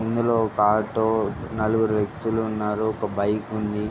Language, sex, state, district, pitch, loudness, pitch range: Telugu, male, Andhra Pradesh, Srikakulam, 110 Hz, -23 LUFS, 105-110 Hz